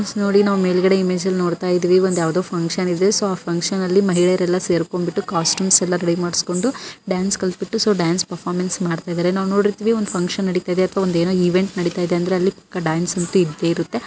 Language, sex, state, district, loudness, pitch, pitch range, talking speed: Kannada, female, Karnataka, Gulbarga, -19 LUFS, 185 Hz, 175-195 Hz, 190 wpm